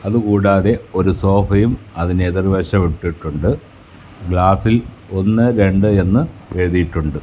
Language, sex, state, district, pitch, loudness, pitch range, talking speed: Malayalam, male, Kerala, Kasaragod, 95 Hz, -16 LUFS, 90-105 Hz, 85 wpm